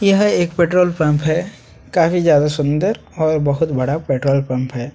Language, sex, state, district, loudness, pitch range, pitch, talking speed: Hindi, male, Chhattisgarh, Sukma, -17 LUFS, 140-175 Hz, 155 Hz, 170 wpm